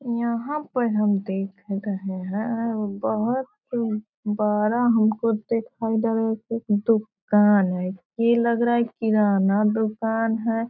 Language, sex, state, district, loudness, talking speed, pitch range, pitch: Hindi, female, Bihar, Sitamarhi, -23 LUFS, 135 wpm, 210-230 Hz, 220 Hz